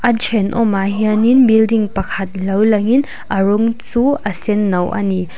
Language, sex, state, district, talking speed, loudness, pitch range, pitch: Mizo, female, Mizoram, Aizawl, 180 wpm, -15 LUFS, 195-230 Hz, 215 Hz